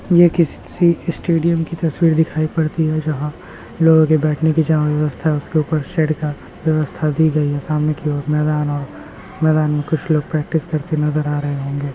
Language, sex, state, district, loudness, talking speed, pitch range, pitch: Hindi, male, Bihar, Muzaffarpur, -18 LUFS, 195 wpm, 150-160 Hz, 155 Hz